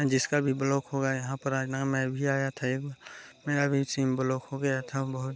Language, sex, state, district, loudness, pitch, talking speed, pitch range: Hindi, male, Chhattisgarh, Balrampur, -29 LUFS, 135 Hz, 245 wpm, 130-140 Hz